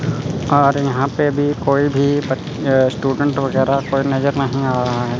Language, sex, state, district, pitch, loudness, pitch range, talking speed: Hindi, male, Chandigarh, Chandigarh, 140 Hz, -17 LUFS, 135-145 Hz, 175 wpm